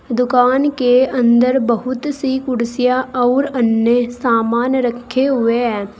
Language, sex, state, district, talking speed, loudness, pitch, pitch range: Hindi, female, Uttar Pradesh, Saharanpur, 120 wpm, -15 LUFS, 250 Hz, 235-260 Hz